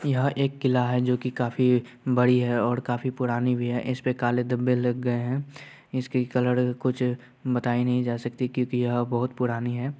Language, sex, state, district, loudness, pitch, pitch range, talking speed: Hindi, male, Bihar, Saharsa, -26 LUFS, 125 Hz, 120-130 Hz, 185 wpm